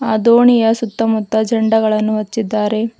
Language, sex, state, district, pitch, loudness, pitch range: Kannada, female, Karnataka, Bidar, 220 Hz, -14 LUFS, 215-230 Hz